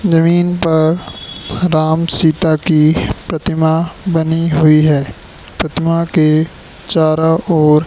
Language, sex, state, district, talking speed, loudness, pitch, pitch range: Hindi, male, Madhya Pradesh, Katni, 100 wpm, -13 LUFS, 160 Hz, 155-165 Hz